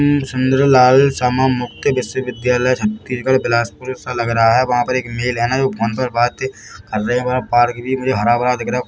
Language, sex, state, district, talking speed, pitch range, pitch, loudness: Hindi, male, Chhattisgarh, Bilaspur, 225 wpm, 120-130 Hz, 125 Hz, -16 LUFS